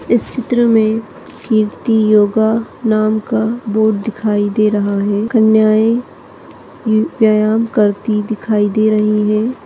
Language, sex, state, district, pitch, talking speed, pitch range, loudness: Kumaoni, female, Uttarakhand, Tehri Garhwal, 220 Hz, 120 wpm, 210-225 Hz, -14 LUFS